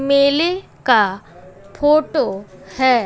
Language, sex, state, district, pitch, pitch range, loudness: Hindi, female, Bihar, West Champaran, 235 Hz, 190-280 Hz, -17 LUFS